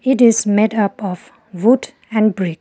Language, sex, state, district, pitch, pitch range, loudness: English, female, Arunachal Pradesh, Lower Dibang Valley, 215 Hz, 200-230 Hz, -16 LUFS